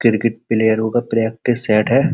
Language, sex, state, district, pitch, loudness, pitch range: Hindi, male, Uttar Pradesh, Muzaffarnagar, 115 Hz, -17 LUFS, 110-120 Hz